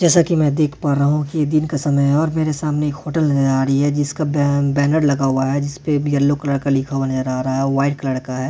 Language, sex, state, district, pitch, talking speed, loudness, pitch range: Hindi, male, Delhi, New Delhi, 145 Hz, 295 wpm, -18 LUFS, 135-150 Hz